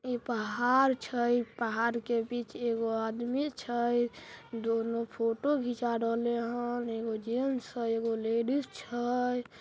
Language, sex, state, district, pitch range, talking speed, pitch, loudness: Maithili, female, Bihar, Samastipur, 230-245 Hz, 125 wpm, 235 Hz, -32 LUFS